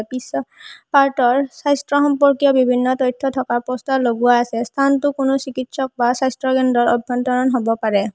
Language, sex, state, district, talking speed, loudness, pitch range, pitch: Assamese, female, Assam, Hailakandi, 140 wpm, -18 LUFS, 245-275 Hz, 255 Hz